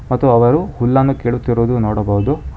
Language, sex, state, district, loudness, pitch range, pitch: Kannada, male, Karnataka, Bangalore, -15 LUFS, 115-135 Hz, 120 Hz